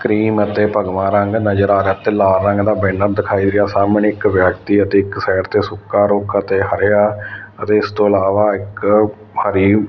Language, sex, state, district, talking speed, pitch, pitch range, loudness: Punjabi, male, Punjab, Fazilka, 180 wpm, 100 Hz, 100-105 Hz, -15 LUFS